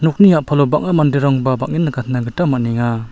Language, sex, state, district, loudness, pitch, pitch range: Garo, male, Meghalaya, South Garo Hills, -15 LUFS, 140 Hz, 125-160 Hz